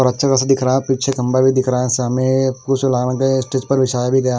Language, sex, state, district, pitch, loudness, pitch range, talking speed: Hindi, male, Bihar, West Champaran, 130 Hz, -16 LUFS, 125-135 Hz, 245 wpm